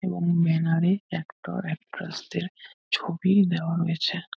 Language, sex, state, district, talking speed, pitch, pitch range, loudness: Bengali, male, West Bengal, North 24 Parganas, 125 wpm, 175 Hz, 165-185 Hz, -26 LUFS